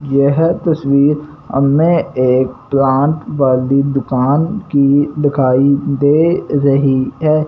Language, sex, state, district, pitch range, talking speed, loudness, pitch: Hindi, male, Punjab, Fazilka, 135-150 Hz, 95 wpm, -13 LUFS, 140 Hz